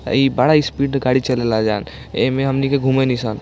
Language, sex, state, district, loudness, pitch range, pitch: Hindi, male, Bihar, East Champaran, -17 LUFS, 115-135 Hz, 130 Hz